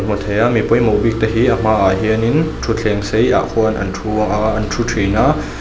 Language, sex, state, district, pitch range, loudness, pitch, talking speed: Mizo, male, Mizoram, Aizawl, 105-115 Hz, -15 LUFS, 110 Hz, 235 wpm